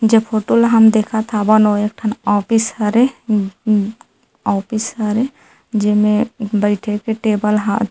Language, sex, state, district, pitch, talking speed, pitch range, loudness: Chhattisgarhi, female, Chhattisgarh, Rajnandgaon, 215 Hz, 145 wpm, 210-225 Hz, -16 LUFS